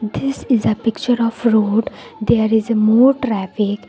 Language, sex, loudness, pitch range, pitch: English, female, -16 LUFS, 215-240 Hz, 225 Hz